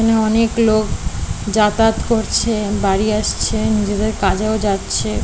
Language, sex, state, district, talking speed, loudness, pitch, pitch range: Bengali, female, West Bengal, Kolkata, 115 wpm, -17 LUFS, 215 Hz, 205-220 Hz